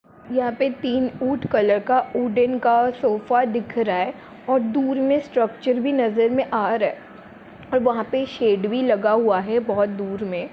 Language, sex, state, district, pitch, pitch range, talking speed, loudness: Hindi, female, Jharkhand, Sahebganj, 245 Hz, 215-260 Hz, 180 wpm, -21 LUFS